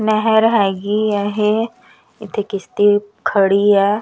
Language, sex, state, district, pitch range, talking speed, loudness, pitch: Punjabi, female, Punjab, Kapurthala, 200-215 Hz, 120 wpm, -16 LUFS, 210 Hz